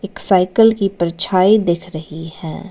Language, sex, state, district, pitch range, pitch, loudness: Hindi, female, Arunachal Pradesh, Lower Dibang Valley, 165-200 Hz, 185 Hz, -15 LUFS